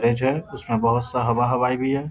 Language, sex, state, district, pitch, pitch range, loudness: Hindi, male, Bihar, Darbhanga, 125 Hz, 120-130 Hz, -22 LUFS